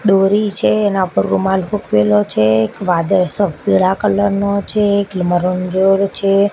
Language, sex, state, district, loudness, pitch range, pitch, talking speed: Gujarati, female, Gujarat, Gandhinagar, -15 LUFS, 170-200 Hz, 190 Hz, 145 wpm